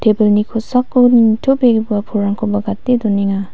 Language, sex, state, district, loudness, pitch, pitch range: Garo, female, Meghalaya, West Garo Hills, -14 LUFS, 215 Hz, 205-245 Hz